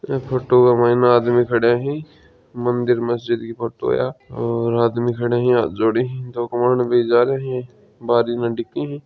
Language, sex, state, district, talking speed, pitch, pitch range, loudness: Hindi, male, Rajasthan, Churu, 125 wpm, 120 Hz, 120-125 Hz, -19 LUFS